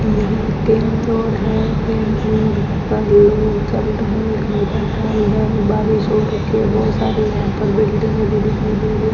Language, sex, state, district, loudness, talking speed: Hindi, female, Rajasthan, Bikaner, -16 LUFS, 80 wpm